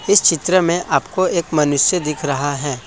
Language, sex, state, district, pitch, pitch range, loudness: Hindi, male, Assam, Kamrup Metropolitan, 165 Hz, 145-180 Hz, -16 LUFS